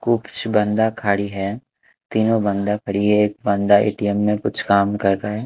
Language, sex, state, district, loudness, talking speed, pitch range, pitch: Hindi, male, Punjab, Kapurthala, -19 LUFS, 175 wpm, 100-110 Hz, 105 Hz